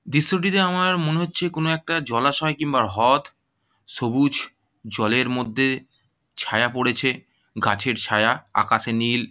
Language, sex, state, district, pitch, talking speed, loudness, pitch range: Bengali, female, West Bengal, Jhargram, 140 Hz, 115 wpm, -21 LUFS, 120-160 Hz